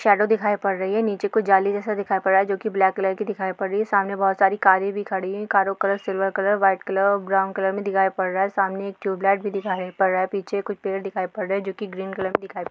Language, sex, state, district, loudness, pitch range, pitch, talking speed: Hindi, female, Bihar, Samastipur, -22 LUFS, 190-205 Hz, 195 Hz, 345 wpm